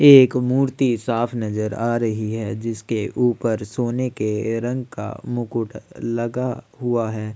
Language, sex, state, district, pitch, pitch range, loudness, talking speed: Hindi, male, Chhattisgarh, Sukma, 115 Hz, 110-125 Hz, -22 LUFS, 145 wpm